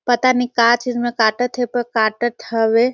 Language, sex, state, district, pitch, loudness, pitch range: Surgujia, female, Chhattisgarh, Sarguja, 240 Hz, -17 LUFS, 230-245 Hz